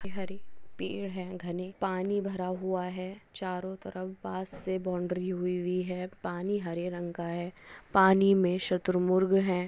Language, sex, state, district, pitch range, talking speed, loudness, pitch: Hindi, female, West Bengal, Dakshin Dinajpur, 180-190 Hz, 150 wpm, -31 LUFS, 185 Hz